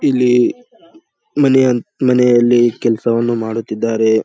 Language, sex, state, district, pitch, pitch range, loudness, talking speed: Kannada, male, Karnataka, Bijapur, 120 Hz, 115-130 Hz, -14 LUFS, 70 wpm